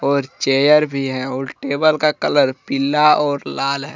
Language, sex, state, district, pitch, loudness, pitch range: Hindi, male, Jharkhand, Deoghar, 140 Hz, -17 LUFS, 135-150 Hz